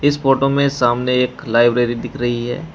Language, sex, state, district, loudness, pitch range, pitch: Hindi, male, Uttar Pradesh, Shamli, -17 LUFS, 120-135 Hz, 125 Hz